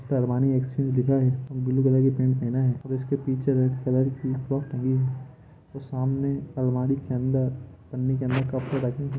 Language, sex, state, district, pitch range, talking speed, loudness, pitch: Hindi, male, Jharkhand, Jamtara, 130-135 Hz, 185 wpm, -25 LUFS, 130 Hz